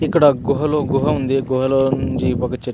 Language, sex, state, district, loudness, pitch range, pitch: Telugu, male, Andhra Pradesh, Anantapur, -18 LUFS, 130-145 Hz, 135 Hz